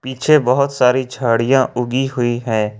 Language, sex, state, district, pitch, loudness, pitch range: Hindi, male, Jharkhand, Ranchi, 125 Hz, -16 LUFS, 120-135 Hz